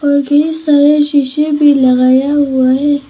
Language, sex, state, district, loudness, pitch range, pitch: Hindi, female, Arunachal Pradesh, Papum Pare, -11 LUFS, 270-295 Hz, 285 Hz